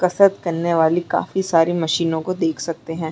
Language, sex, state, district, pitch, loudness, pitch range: Hindi, female, Chhattisgarh, Bilaspur, 170 Hz, -19 LUFS, 165-180 Hz